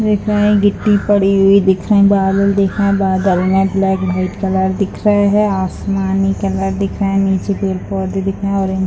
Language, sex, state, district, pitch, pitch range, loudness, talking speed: Hindi, female, Bihar, Purnia, 195 Hz, 190-200 Hz, -14 LUFS, 235 wpm